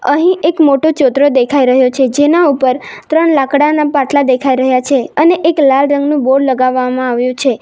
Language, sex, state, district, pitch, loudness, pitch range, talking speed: Gujarati, female, Gujarat, Valsad, 275 Hz, -11 LUFS, 260-295 Hz, 180 wpm